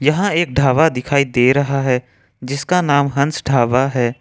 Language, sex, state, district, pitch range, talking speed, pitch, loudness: Hindi, male, Jharkhand, Ranchi, 125-145 Hz, 170 wpm, 140 Hz, -16 LUFS